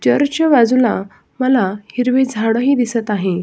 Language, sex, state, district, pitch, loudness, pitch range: Marathi, female, Maharashtra, Sindhudurg, 245 Hz, -15 LUFS, 210-260 Hz